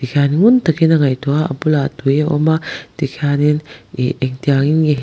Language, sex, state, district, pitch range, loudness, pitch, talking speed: Mizo, male, Mizoram, Aizawl, 135-155 Hz, -15 LUFS, 145 Hz, 205 wpm